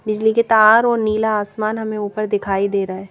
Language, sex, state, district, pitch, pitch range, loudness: Hindi, female, Madhya Pradesh, Bhopal, 215 Hz, 205-220 Hz, -17 LUFS